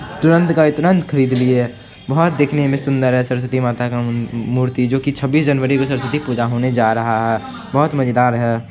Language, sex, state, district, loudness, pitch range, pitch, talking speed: Hindi, male, Bihar, Supaul, -16 LUFS, 120-140 Hz, 130 Hz, 195 wpm